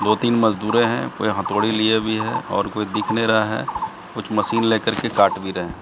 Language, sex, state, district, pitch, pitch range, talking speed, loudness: Hindi, male, Bihar, Katihar, 110 Hz, 105-115 Hz, 245 wpm, -20 LUFS